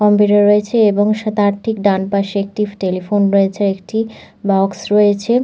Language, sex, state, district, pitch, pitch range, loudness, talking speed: Bengali, female, West Bengal, North 24 Parganas, 205 Hz, 200-210 Hz, -15 LUFS, 155 wpm